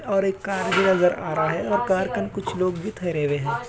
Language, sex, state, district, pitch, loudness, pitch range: Hindi, male, Uttar Pradesh, Jalaun, 190 Hz, -23 LUFS, 180-195 Hz